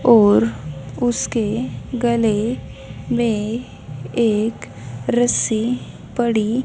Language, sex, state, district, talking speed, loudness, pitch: Hindi, female, Haryana, Jhajjar, 65 wpm, -19 LUFS, 220 Hz